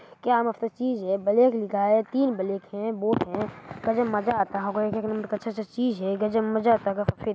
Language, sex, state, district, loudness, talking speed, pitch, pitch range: Hindi, male, Chhattisgarh, Balrampur, -26 LUFS, 140 wpm, 220 Hz, 205-230 Hz